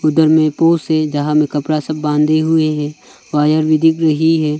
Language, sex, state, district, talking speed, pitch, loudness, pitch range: Hindi, male, Arunachal Pradesh, Longding, 180 wpm, 155 Hz, -14 LUFS, 150-160 Hz